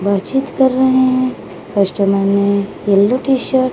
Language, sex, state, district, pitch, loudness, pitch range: Hindi, female, Odisha, Malkangiri, 245 Hz, -15 LUFS, 200-260 Hz